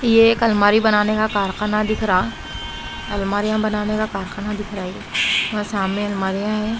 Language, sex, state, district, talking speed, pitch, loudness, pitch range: Hindi, female, Punjab, Pathankot, 165 wpm, 210 Hz, -20 LUFS, 195-215 Hz